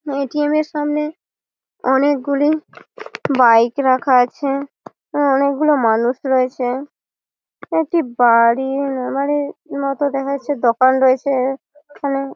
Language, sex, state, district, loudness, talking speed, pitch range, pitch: Bengali, female, West Bengal, Malda, -17 LUFS, 95 wpm, 260-290 Hz, 275 Hz